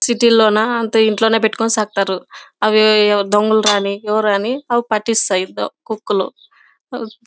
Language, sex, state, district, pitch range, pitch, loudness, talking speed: Telugu, female, Karnataka, Bellary, 210-230 Hz, 220 Hz, -15 LUFS, 125 wpm